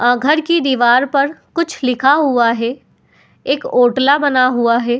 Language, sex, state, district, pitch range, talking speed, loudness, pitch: Hindi, female, Uttar Pradesh, Etah, 245-285 Hz, 170 wpm, -14 LUFS, 260 Hz